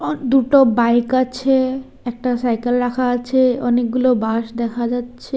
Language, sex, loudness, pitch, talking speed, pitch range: Bengali, female, -17 LUFS, 245 Hz, 125 wpm, 240-255 Hz